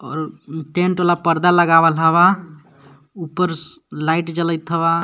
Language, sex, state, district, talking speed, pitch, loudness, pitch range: Magahi, male, Jharkhand, Palamu, 130 wpm, 165 Hz, -17 LUFS, 160-175 Hz